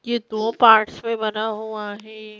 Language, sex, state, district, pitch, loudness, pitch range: Hindi, female, Madhya Pradesh, Bhopal, 220 Hz, -20 LUFS, 215-225 Hz